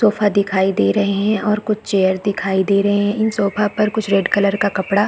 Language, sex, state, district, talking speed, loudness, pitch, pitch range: Hindi, female, Chhattisgarh, Bastar, 235 wpm, -17 LUFS, 205 Hz, 200-210 Hz